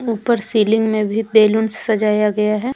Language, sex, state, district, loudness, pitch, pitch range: Hindi, female, Jharkhand, Deoghar, -16 LUFS, 220 Hz, 210-225 Hz